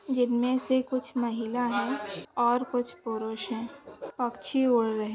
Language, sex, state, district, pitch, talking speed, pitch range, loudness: Hindi, female, Maharashtra, Pune, 240 Hz, 140 wpm, 225-255 Hz, -29 LUFS